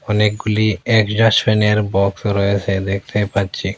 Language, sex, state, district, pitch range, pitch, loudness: Bengali, male, Assam, Hailakandi, 100-110 Hz, 105 Hz, -17 LUFS